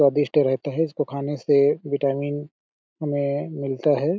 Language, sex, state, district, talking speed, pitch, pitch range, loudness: Hindi, male, Chhattisgarh, Balrampur, 145 wpm, 145 Hz, 140-150 Hz, -23 LUFS